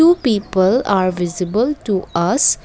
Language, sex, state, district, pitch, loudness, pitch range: English, female, Assam, Kamrup Metropolitan, 200 Hz, -17 LUFS, 185-250 Hz